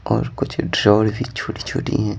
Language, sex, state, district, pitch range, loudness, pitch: Hindi, male, Bihar, Patna, 105-130 Hz, -20 LUFS, 110 Hz